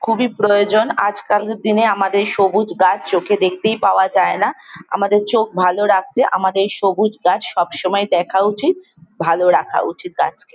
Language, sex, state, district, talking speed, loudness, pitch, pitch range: Bengali, female, West Bengal, Jalpaiguri, 150 wpm, -16 LUFS, 205 Hz, 190-215 Hz